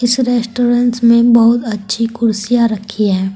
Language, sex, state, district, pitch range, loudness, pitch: Hindi, female, Uttar Pradesh, Saharanpur, 215-240 Hz, -13 LUFS, 235 Hz